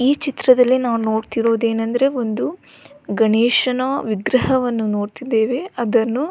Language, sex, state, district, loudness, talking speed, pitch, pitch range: Kannada, female, Karnataka, Belgaum, -18 LUFS, 105 wpm, 240 Hz, 225-260 Hz